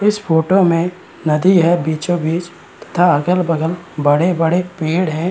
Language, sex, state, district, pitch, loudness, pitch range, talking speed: Hindi, male, Uttarakhand, Tehri Garhwal, 170 Hz, -16 LUFS, 160-180 Hz, 125 wpm